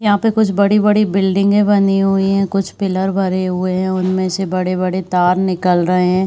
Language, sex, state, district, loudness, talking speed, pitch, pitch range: Hindi, female, Bihar, Saharsa, -15 LUFS, 240 wpm, 190 Hz, 185-195 Hz